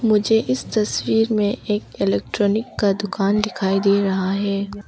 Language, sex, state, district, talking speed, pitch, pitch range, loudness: Hindi, female, Arunachal Pradesh, Papum Pare, 145 wpm, 205 Hz, 195-210 Hz, -20 LUFS